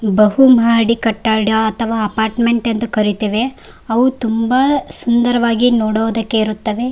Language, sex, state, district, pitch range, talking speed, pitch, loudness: Kannada, female, Karnataka, Raichur, 220-240 Hz, 115 wpm, 230 Hz, -14 LUFS